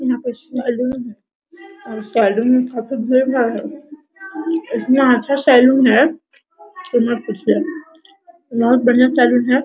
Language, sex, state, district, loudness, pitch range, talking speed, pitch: Hindi, female, Bihar, Araria, -16 LUFS, 245-305 Hz, 135 wpm, 255 Hz